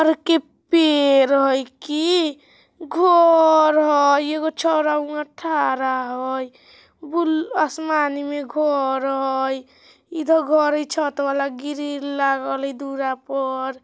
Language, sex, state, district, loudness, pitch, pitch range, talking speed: Bajjika, female, Bihar, Vaishali, -20 LUFS, 290 Hz, 270-315 Hz, 120 wpm